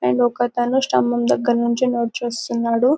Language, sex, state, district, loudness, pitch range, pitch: Telugu, female, Telangana, Karimnagar, -19 LUFS, 210-245 Hz, 235 Hz